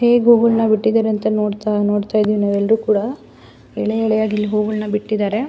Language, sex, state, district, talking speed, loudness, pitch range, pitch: Kannada, female, Karnataka, Dakshina Kannada, 185 wpm, -17 LUFS, 210-225 Hz, 215 Hz